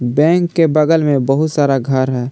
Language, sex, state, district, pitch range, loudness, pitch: Hindi, male, Jharkhand, Palamu, 130-155 Hz, -14 LUFS, 145 Hz